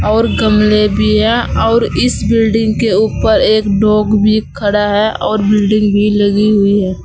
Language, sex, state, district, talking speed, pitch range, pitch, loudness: Hindi, female, Uttar Pradesh, Saharanpur, 170 wpm, 205-215 Hz, 210 Hz, -12 LUFS